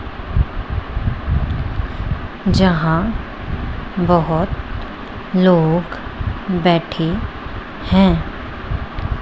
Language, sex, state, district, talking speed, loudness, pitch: Hindi, female, Punjab, Pathankot, 35 wpm, -19 LUFS, 105 Hz